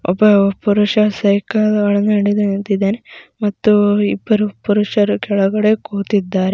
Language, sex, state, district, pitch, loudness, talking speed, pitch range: Kannada, female, Karnataka, Mysore, 205 Hz, -15 LUFS, 90 wpm, 200-210 Hz